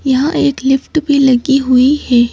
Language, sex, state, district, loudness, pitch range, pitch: Hindi, female, Madhya Pradesh, Bhopal, -12 LUFS, 260-285 Hz, 270 Hz